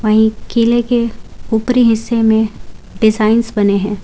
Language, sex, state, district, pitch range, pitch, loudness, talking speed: Hindi, female, Jharkhand, Garhwa, 215-235 Hz, 220 Hz, -14 LUFS, 135 wpm